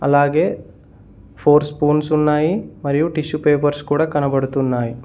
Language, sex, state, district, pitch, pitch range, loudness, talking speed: Telugu, male, Telangana, Mahabubabad, 145 Hz, 135-150 Hz, -18 LUFS, 105 wpm